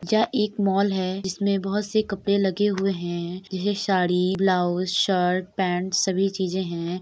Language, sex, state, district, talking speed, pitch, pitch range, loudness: Hindi, female, Uttar Pradesh, Etah, 160 wpm, 190 Hz, 180-200 Hz, -24 LUFS